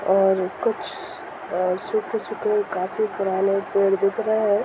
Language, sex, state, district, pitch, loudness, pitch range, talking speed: Hindi, female, Bihar, Darbhanga, 200 Hz, -23 LUFS, 190-220 Hz, 130 wpm